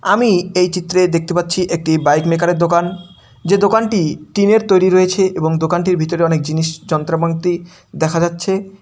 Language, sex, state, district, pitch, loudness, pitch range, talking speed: Bengali, male, West Bengal, Dakshin Dinajpur, 175 Hz, -15 LUFS, 165-185 Hz, 170 wpm